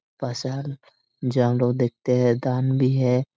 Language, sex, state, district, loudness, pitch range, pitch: Hindi, male, Jharkhand, Sahebganj, -23 LUFS, 125-130 Hz, 125 Hz